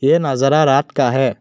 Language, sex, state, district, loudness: Hindi, male, Assam, Kamrup Metropolitan, -15 LUFS